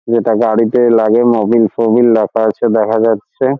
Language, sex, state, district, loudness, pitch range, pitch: Bengali, male, West Bengal, Dakshin Dinajpur, -12 LUFS, 110-120 Hz, 115 Hz